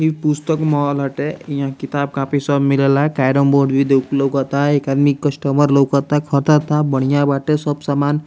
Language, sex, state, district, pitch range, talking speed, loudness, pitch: Bhojpuri, male, Bihar, Muzaffarpur, 140-145 Hz, 175 wpm, -16 LUFS, 140 Hz